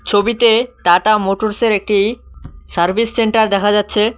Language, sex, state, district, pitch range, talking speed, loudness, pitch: Bengali, male, West Bengal, Cooch Behar, 200-230 Hz, 115 wpm, -14 LUFS, 215 Hz